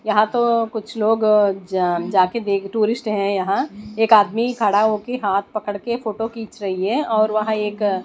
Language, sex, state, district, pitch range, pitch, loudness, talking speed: Hindi, female, Odisha, Nuapada, 200-225 Hz, 215 Hz, -19 LUFS, 180 wpm